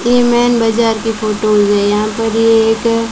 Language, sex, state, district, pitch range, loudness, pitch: Hindi, female, Rajasthan, Bikaner, 215-230 Hz, -12 LUFS, 225 Hz